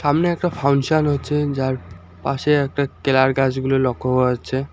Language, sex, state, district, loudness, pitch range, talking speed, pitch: Bengali, male, West Bengal, Alipurduar, -20 LUFS, 130-145 Hz, 150 wpm, 135 Hz